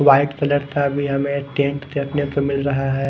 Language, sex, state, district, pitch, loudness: Hindi, female, Himachal Pradesh, Shimla, 140 Hz, -20 LUFS